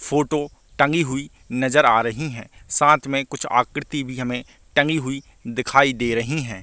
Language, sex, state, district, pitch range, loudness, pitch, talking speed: Hindi, male, Chhattisgarh, Bastar, 125-145 Hz, -21 LUFS, 140 Hz, 170 wpm